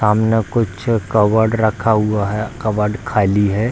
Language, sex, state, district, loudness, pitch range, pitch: Hindi, male, Bihar, Darbhanga, -17 LUFS, 105-110 Hz, 110 Hz